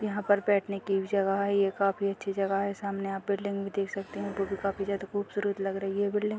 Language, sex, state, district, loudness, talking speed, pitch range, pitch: Hindi, female, Uttar Pradesh, Deoria, -30 LUFS, 270 wpm, 195-200 Hz, 200 Hz